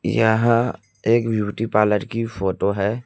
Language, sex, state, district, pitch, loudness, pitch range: Hindi, male, Chhattisgarh, Raipur, 110 Hz, -20 LUFS, 100-115 Hz